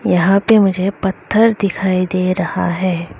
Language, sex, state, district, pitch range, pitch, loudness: Hindi, female, Arunachal Pradesh, Lower Dibang Valley, 185-200 Hz, 190 Hz, -15 LUFS